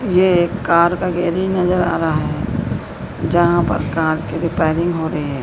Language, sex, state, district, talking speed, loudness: Hindi, female, Madhya Pradesh, Dhar, 185 wpm, -17 LUFS